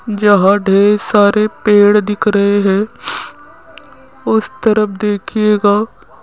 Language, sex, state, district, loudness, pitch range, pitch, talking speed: Hindi, female, Rajasthan, Jaipur, -12 LUFS, 205-215 Hz, 210 Hz, 105 wpm